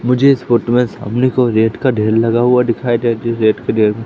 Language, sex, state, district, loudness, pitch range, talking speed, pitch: Hindi, male, Madhya Pradesh, Katni, -14 LUFS, 110-125 Hz, 280 wpm, 120 Hz